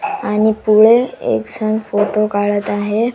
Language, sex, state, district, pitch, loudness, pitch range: Marathi, female, Maharashtra, Washim, 215 Hz, -15 LUFS, 205-220 Hz